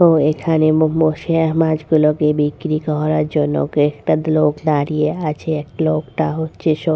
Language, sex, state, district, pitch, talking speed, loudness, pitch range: Bengali, female, West Bengal, Purulia, 155 Hz, 130 wpm, -17 LUFS, 150-160 Hz